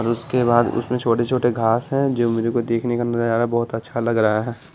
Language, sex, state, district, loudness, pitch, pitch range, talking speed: Hindi, male, Bihar, Patna, -20 LUFS, 120 Hz, 115-120 Hz, 255 wpm